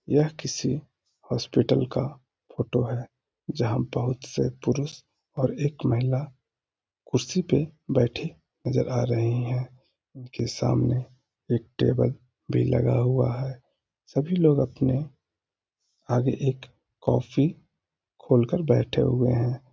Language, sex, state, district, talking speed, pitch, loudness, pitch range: Hindi, male, Bihar, Araria, 120 wpm, 130 Hz, -26 LUFS, 120-135 Hz